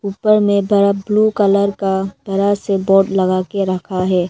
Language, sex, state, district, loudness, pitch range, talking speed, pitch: Hindi, female, Arunachal Pradesh, Lower Dibang Valley, -15 LUFS, 190-200 Hz, 180 wpm, 195 Hz